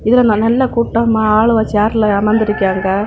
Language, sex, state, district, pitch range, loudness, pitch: Tamil, female, Tamil Nadu, Kanyakumari, 210-230 Hz, -13 LUFS, 220 Hz